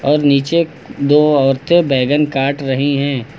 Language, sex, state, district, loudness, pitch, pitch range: Hindi, male, Uttar Pradesh, Lucknow, -14 LUFS, 140 Hz, 135-150 Hz